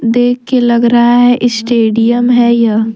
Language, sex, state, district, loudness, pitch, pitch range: Hindi, female, Jharkhand, Deoghar, -10 LUFS, 240 Hz, 230-245 Hz